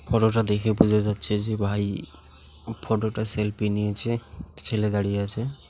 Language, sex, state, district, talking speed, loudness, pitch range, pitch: Bengali, male, West Bengal, Alipurduar, 135 wpm, -25 LUFS, 100-110 Hz, 105 Hz